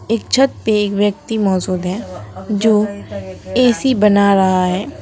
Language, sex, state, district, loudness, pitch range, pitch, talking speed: Hindi, female, West Bengal, Alipurduar, -15 LUFS, 180-215 Hz, 205 Hz, 145 wpm